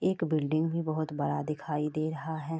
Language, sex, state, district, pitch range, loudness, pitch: Maithili, female, Bihar, Supaul, 150-160 Hz, -31 LUFS, 155 Hz